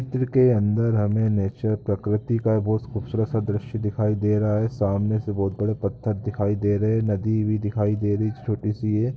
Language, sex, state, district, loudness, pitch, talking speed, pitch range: Hindi, male, Chhattisgarh, Raigarh, -23 LUFS, 105 Hz, 215 wpm, 105-110 Hz